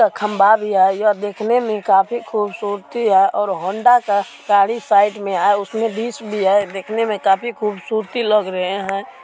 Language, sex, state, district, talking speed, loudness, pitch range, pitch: Maithili, female, Bihar, Supaul, 170 wpm, -17 LUFS, 195-225 Hz, 205 Hz